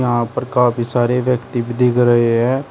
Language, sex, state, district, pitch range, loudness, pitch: Hindi, male, Uttar Pradesh, Shamli, 120-125 Hz, -16 LUFS, 120 Hz